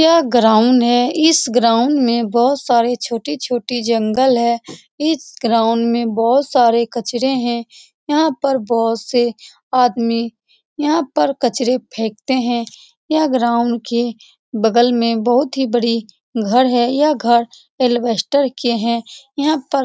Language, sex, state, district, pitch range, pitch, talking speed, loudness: Hindi, female, Bihar, Saran, 235-270 Hz, 240 Hz, 140 wpm, -16 LUFS